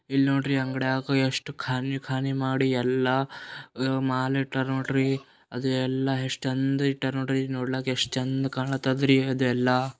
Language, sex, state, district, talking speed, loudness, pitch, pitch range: Kannada, male, Karnataka, Gulbarga, 140 wpm, -26 LUFS, 130 Hz, 130-135 Hz